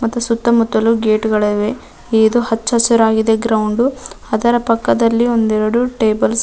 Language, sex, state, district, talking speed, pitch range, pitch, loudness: Kannada, female, Karnataka, Dharwad, 120 wpm, 220-235 Hz, 225 Hz, -15 LUFS